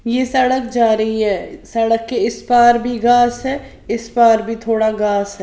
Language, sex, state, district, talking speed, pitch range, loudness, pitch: Hindi, female, Maharashtra, Washim, 200 wpm, 220-245 Hz, -16 LUFS, 230 Hz